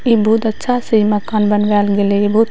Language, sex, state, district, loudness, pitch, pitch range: Maithili, female, Bihar, Madhepura, -14 LUFS, 215 Hz, 205-225 Hz